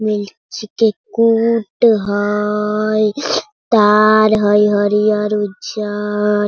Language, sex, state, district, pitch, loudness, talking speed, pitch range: Hindi, female, Bihar, Sitamarhi, 210 Hz, -15 LUFS, 65 wpm, 210-215 Hz